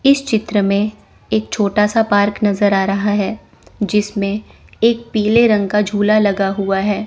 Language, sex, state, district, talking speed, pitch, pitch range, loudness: Hindi, female, Chandigarh, Chandigarh, 170 wpm, 205 Hz, 200-215 Hz, -16 LUFS